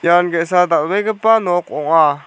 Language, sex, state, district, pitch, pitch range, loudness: Garo, male, Meghalaya, South Garo Hills, 175 Hz, 165-190 Hz, -15 LUFS